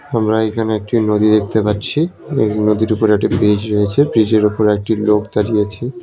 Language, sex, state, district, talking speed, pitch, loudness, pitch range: Bengali, male, West Bengal, Cooch Behar, 190 wpm, 110 Hz, -15 LUFS, 105-110 Hz